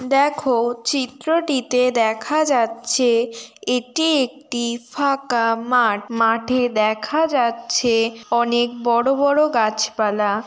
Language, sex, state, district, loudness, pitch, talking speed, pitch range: Bengali, female, West Bengal, Purulia, -19 LUFS, 240 Hz, 85 wpm, 230-270 Hz